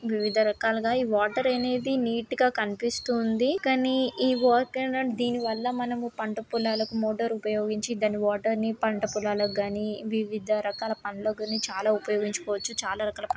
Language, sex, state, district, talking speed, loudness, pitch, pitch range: Telugu, female, Telangana, Karimnagar, 140 wpm, -27 LUFS, 220 Hz, 210-245 Hz